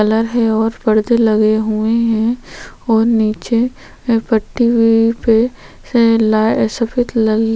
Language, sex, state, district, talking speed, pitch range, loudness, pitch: Hindi, female, Chhattisgarh, Korba, 105 wpm, 220-235 Hz, -14 LUFS, 225 Hz